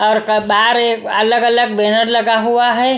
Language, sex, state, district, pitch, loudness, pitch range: Hindi, female, Punjab, Kapurthala, 230 Hz, -13 LUFS, 215-240 Hz